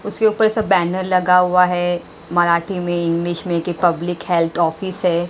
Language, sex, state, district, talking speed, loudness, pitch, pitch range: Hindi, female, Maharashtra, Mumbai Suburban, 180 wpm, -18 LUFS, 175 Hz, 170-185 Hz